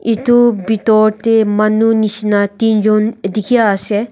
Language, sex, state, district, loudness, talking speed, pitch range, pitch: Nagamese, female, Nagaland, Dimapur, -13 LUFS, 115 wpm, 210-225 Hz, 215 Hz